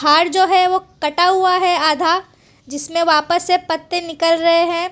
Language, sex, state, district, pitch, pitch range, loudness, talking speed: Hindi, female, Gujarat, Valsad, 340 Hz, 325-360 Hz, -16 LUFS, 185 wpm